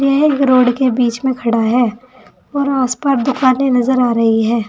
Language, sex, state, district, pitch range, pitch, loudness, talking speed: Hindi, female, Uttar Pradesh, Saharanpur, 240-270 Hz, 255 Hz, -14 LUFS, 205 wpm